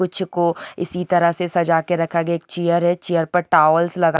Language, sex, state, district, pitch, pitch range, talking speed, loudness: Hindi, female, Haryana, Rohtak, 170 Hz, 170-175 Hz, 230 wpm, -19 LUFS